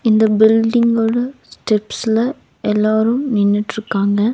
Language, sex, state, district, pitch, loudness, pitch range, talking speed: Tamil, female, Tamil Nadu, Nilgiris, 220 Hz, -16 LUFS, 210-230 Hz, 70 wpm